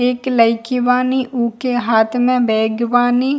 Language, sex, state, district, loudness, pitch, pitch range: Bhojpuri, female, Bihar, East Champaran, -16 LUFS, 245 Hz, 230-250 Hz